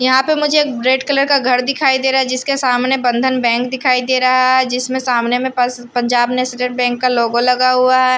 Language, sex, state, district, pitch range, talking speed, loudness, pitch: Hindi, female, Bihar, Patna, 245-260 Hz, 225 wpm, -14 LUFS, 255 Hz